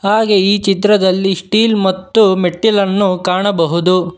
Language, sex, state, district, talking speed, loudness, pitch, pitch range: Kannada, male, Karnataka, Bangalore, 100 wpm, -13 LUFS, 195 Hz, 185-205 Hz